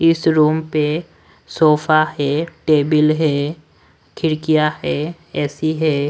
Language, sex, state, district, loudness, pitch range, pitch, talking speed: Hindi, male, Odisha, Sambalpur, -17 LUFS, 150-160 Hz, 155 Hz, 110 wpm